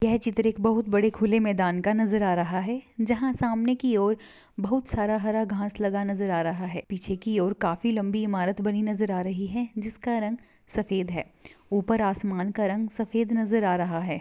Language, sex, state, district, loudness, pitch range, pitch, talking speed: Hindi, female, Maharashtra, Nagpur, -27 LUFS, 195-225 Hz, 210 Hz, 205 wpm